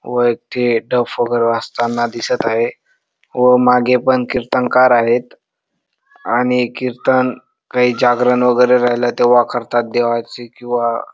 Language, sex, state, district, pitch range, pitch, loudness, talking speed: Marathi, male, Maharashtra, Dhule, 120-125 Hz, 125 Hz, -15 LUFS, 135 wpm